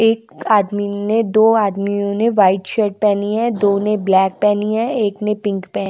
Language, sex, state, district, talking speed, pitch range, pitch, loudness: Hindi, female, Himachal Pradesh, Shimla, 175 wpm, 200-220 Hz, 210 Hz, -16 LUFS